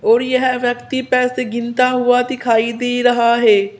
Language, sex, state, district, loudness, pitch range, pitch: Hindi, female, Uttar Pradesh, Saharanpur, -15 LUFS, 235-255 Hz, 245 Hz